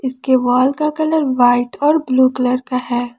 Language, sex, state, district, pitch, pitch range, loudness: Hindi, female, Jharkhand, Palamu, 255 Hz, 245-280 Hz, -15 LUFS